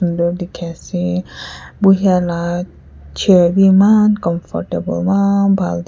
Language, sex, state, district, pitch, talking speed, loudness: Nagamese, female, Nagaland, Kohima, 175 Hz, 120 wpm, -15 LUFS